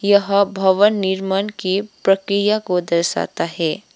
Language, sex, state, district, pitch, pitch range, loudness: Hindi, female, Sikkim, Gangtok, 195 Hz, 190-200 Hz, -18 LUFS